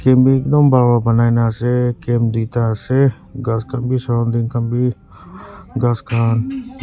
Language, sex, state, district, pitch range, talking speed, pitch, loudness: Nagamese, male, Nagaland, Kohima, 115-130 Hz, 160 wpm, 120 Hz, -16 LUFS